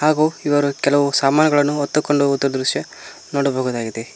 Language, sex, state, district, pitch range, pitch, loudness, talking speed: Kannada, male, Karnataka, Koppal, 135-145 Hz, 140 Hz, -18 LUFS, 115 wpm